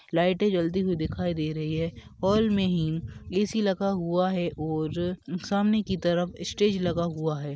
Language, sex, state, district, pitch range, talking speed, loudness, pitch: Hindi, male, Jharkhand, Sahebganj, 160-195 Hz, 180 wpm, -27 LUFS, 175 Hz